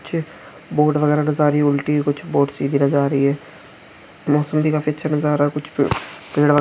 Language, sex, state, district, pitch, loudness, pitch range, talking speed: Hindi, male, Jharkhand, Sahebganj, 150 Hz, -19 LUFS, 140-150 Hz, 200 wpm